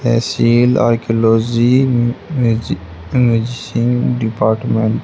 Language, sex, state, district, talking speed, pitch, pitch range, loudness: Hindi, male, Haryana, Charkhi Dadri, 70 wpm, 115 Hz, 115-120 Hz, -15 LUFS